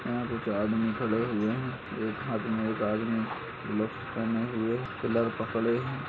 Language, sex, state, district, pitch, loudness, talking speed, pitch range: Hindi, male, Uttarakhand, Uttarkashi, 115 Hz, -31 LUFS, 165 wpm, 110-120 Hz